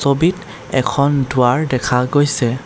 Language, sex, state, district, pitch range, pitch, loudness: Assamese, male, Assam, Kamrup Metropolitan, 125-145 Hz, 140 Hz, -16 LUFS